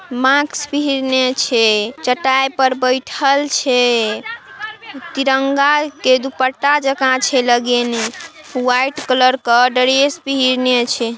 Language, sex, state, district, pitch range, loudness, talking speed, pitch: Maithili, female, Bihar, Darbhanga, 250-280 Hz, -15 LUFS, 105 wpm, 265 Hz